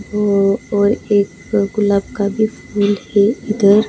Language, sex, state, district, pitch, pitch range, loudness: Hindi, female, Bihar, West Champaran, 205 Hz, 200-210 Hz, -16 LUFS